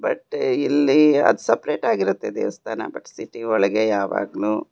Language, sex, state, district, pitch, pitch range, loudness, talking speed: Kannada, female, Karnataka, Bangalore, 135 Hz, 110-150 Hz, -20 LUFS, 115 wpm